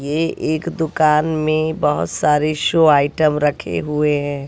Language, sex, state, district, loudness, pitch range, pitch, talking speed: Hindi, female, Bihar, West Champaran, -17 LUFS, 150-155 Hz, 150 Hz, 145 wpm